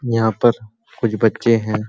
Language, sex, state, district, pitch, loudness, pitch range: Hindi, male, Uttar Pradesh, Muzaffarnagar, 115 Hz, -18 LUFS, 110-115 Hz